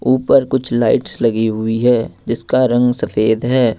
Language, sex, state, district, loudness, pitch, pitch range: Hindi, male, Jharkhand, Ranchi, -15 LUFS, 120 Hz, 110-125 Hz